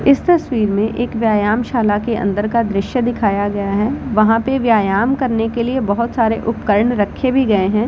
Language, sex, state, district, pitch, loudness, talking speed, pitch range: Hindi, female, Bihar, Samastipur, 225 Hz, -16 LUFS, 200 wpm, 205-245 Hz